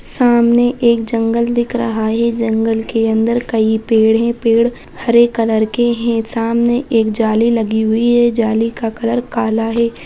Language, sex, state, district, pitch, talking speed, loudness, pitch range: Hindi, female, Bihar, Araria, 230 Hz, 180 wpm, -14 LUFS, 225-235 Hz